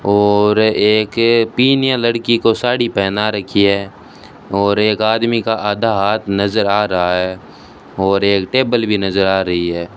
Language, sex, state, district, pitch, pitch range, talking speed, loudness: Hindi, male, Rajasthan, Bikaner, 105 Hz, 95-115 Hz, 160 wpm, -15 LUFS